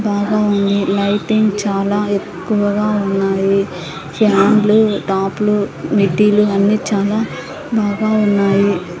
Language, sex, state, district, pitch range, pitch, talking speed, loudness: Telugu, female, Andhra Pradesh, Anantapur, 195-210 Hz, 205 Hz, 95 wpm, -15 LUFS